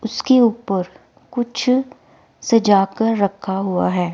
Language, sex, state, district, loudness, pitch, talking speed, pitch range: Hindi, female, Himachal Pradesh, Shimla, -18 LUFS, 220 Hz, 115 wpm, 190-240 Hz